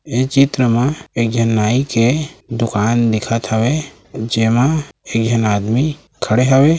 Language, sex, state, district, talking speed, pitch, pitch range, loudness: Chhattisgarhi, male, Chhattisgarh, Raigarh, 150 wpm, 120 Hz, 115-140 Hz, -16 LUFS